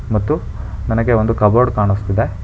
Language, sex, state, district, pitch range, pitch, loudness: Kannada, male, Karnataka, Bangalore, 100-115 Hz, 105 Hz, -16 LUFS